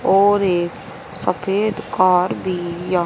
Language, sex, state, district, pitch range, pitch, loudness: Hindi, female, Haryana, Rohtak, 175-200 Hz, 185 Hz, -19 LUFS